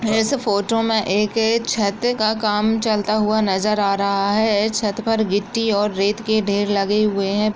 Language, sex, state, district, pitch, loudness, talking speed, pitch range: Hindi, female, Chhattisgarh, Balrampur, 215 Hz, -19 LUFS, 175 wpm, 205-220 Hz